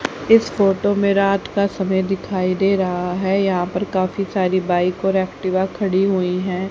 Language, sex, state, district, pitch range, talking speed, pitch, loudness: Hindi, female, Haryana, Jhajjar, 185-195 Hz, 180 wpm, 190 Hz, -19 LUFS